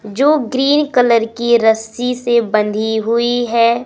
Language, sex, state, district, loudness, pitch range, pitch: Hindi, female, Madhya Pradesh, Umaria, -14 LUFS, 220-245 Hz, 235 Hz